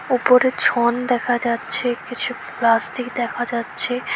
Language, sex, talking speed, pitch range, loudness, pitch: Bengali, female, 115 wpm, 235-250 Hz, -19 LUFS, 245 Hz